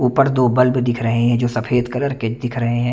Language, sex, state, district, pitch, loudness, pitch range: Hindi, male, Chandigarh, Chandigarh, 120 Hz, -18 LUFS, 120-125 Hz